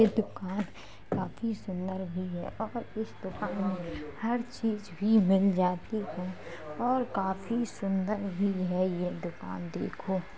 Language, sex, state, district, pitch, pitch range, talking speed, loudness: Hindi, female, Uttar Pradesh, Jalaun, 190 Hz, 180-220 Hz, 140 wpm, -32 LUFS